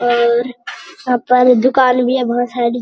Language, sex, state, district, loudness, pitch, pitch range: Hindi, male, Uttarakhand, Uttarkashi, -14 LUFS, 245 Hz, 240-250 Hz